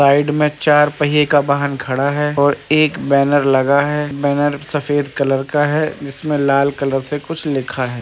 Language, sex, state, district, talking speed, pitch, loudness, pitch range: Hindi, male, Uttar Pradesh, Muzaffarnagar, 195 wpm, 145 Hz, -16 LUFS, 140-150 Hz